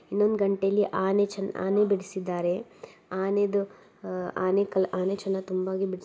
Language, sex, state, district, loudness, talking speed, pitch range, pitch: Kannada, female, Karnataka, Gulbarga, -27 LUFS, 110 wpm, 185-200 Hz, 195 Hz